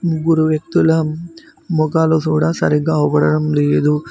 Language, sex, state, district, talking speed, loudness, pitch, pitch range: Telugu, male, Telangana, Mahabubabad, 100 wpm, -16 LUFS, 155 Hz, 150-160 Hz